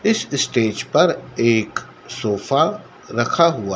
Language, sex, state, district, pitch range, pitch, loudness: Hindi, male, Madhya Pradesh, Dhar, 105-160 Hz, 115 Hz, -19 LUFS